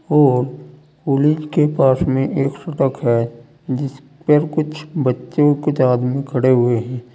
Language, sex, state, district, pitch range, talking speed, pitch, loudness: Hindi, male, Uttar Pradesh, Saharanpur, 125-150 Hz, 135 wpm, 135 Hz, -18 LUFS